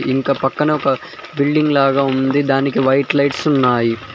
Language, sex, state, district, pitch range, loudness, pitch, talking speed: Telugu, male, Telangana, Mahabubabad, 135-145 Hz, -16 LUFS, 140 Hz, 145 wpm